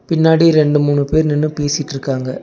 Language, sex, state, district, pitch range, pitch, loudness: Tamil, male, Tamil Nadu, Nilgiris, 145-155 Hz, 150 Hz, -15 LUFS